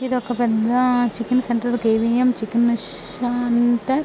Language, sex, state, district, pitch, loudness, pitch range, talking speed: Telugu, female, Andhra Pradesh, Krishna, 240 Hz, -20 LUFS, 235-250 Hz, 150 wpm